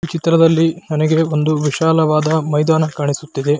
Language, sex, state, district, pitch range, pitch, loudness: Kannada, male, Karnataka, Belgaum, 150-160 Hz, 155 Hz, -15 LUFS